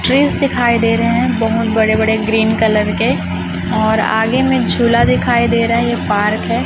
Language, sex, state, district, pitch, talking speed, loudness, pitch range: Hindi, female, Chhattisgarh, Raipur, 225 Hz, 200 wpm, -14 LUFS, 215-235 Hz